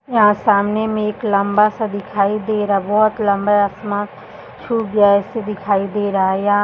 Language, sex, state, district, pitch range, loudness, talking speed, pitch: Hindi, female, Uttar Pradesh, Budaun, 200-215 Hz, -17 LUFS, 200 wpm, 205 Hz